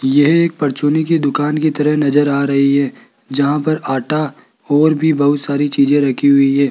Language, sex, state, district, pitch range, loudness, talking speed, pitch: Hindi, male, Rajasthan, Jaipur, 140-150 Hz, -15 LUFS, 195 wpm, 145 Hz